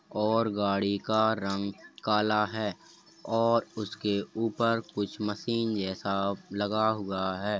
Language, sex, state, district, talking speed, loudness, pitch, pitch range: Hindi, male, Uttar Pradesh, Hamirpur, 120 wpm, -29 LUFS, 105 Hz, 100-110 Hz